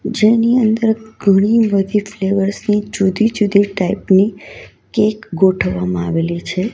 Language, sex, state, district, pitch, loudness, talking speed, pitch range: Gujarati, female, Gujarat, Valsad, 200 Hz, -15 LUFS, 125 wpm, 190-220 Hz